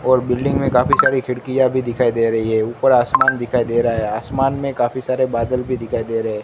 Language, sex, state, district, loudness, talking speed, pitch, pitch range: Hindi, male, Gujarat, Gandhinagar, -18 LUFS, 240 wpm, 125 Hz, 115-130 Hz